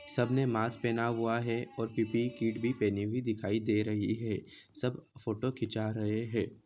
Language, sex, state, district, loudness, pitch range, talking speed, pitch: Hindi, male, Jharkhand, Sahebganj, -33 LUFS, 110-120 Hz, 190 wpm, 115 Hz